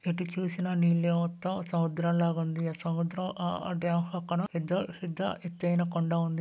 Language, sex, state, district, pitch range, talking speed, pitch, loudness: Telugu, male, Andhra Pradesh, Guntur, 170-180 Hz, 85 wpm, 175 Hz, -31 LUFS